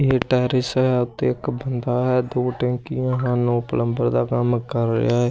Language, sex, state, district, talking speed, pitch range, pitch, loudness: Punjabi, male, Punjab, Kapurthala, 180 wpm, 120-130 Hz, 125 Hz, -21 LUFS